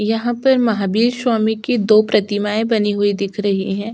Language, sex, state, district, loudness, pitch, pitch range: Hindi, female, Chhattisgarh, Sukma, -17 LUFS, 215 Hz, 205-230 Hz